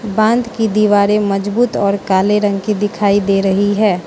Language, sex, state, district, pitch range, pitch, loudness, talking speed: Hindi, female, Manipur, Imphal West, 200-215 Hz, 205 Hz, -14 LUFS, 175 wpm